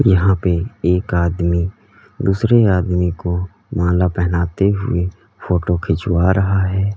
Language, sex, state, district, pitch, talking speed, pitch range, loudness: Hindi, male, Uttar Pradesh, Lalitpur, 90 Hz, 120 wpm, 90-100 Hz, -17 LUFS